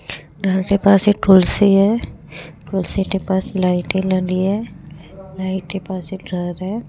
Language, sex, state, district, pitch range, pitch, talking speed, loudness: Hindi, female, Rajasthan, Jaipur, 180-195 Hz, 190 Hz, 155 wpm, -17 LUFS